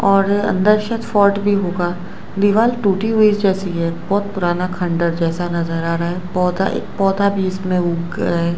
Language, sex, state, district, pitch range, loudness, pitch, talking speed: Hindi, female, Gujarat, Gandhinagar, 175-200 Hz, -17 LUFS, 190 Hz, 180 wpm